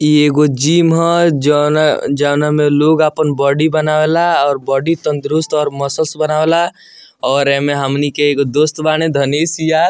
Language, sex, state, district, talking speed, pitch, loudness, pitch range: Bhojpuri, male, Bihar, Muzaffarpur, 165 wpm, 150 Hz, -13 LUFS, 145-160 Hz